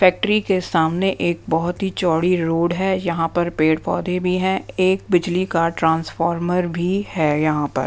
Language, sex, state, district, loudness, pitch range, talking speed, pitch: Hindi, female, Bihar, West Champaran, -20 LUFS, 165-185 Hz, 170 wpm, 175 Hz